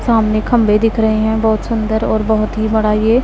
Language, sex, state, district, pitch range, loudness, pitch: Hindi, female, Punjab, Pathankot, 215-225 Hz, -14 LUFS, 220 Hz